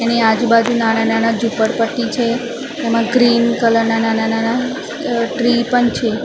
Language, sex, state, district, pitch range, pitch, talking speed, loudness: Gujarati, female, Maharashtra, Mumbai Suburban, 225-240 Hz, 235 Hz, 135 wpm, -16 LUFS